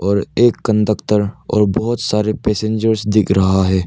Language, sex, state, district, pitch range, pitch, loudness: Hindi, male, Arunachal Pradesh, Lower Dibang Valley, 100-110 Hz, 105 Hz, -16 LUFS